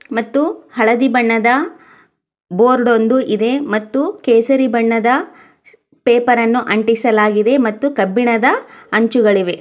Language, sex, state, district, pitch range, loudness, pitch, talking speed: Kannada, female, Karnataka, Chamarajanagar, 230-280 Hz, -14 LUFS, 245 Hz, 95 wpm